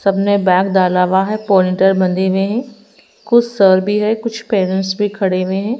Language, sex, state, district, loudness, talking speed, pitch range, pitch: Hindi, female, Haryana, Rohtak, -15 LUFS, 195 wpm, 190-215 Hz, 195 Hz